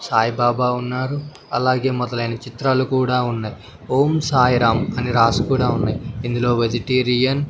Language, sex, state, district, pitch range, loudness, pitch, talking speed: Telugu, male, Andhra Pradesh, Sri Satya Sai, 120-130 Hz, -19 LUFS, 125 Hz, 130 wpm